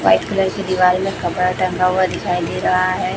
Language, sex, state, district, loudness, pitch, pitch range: Hindi, female, Chhattisgarh, Raipur, -17 LUFS, 185 Hz, 180-185 Hz